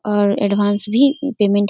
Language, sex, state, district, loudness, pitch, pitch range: Hindi, female, Bihar, Darbhanga, -17 LUFS, 205 Hz, 205-250 Hz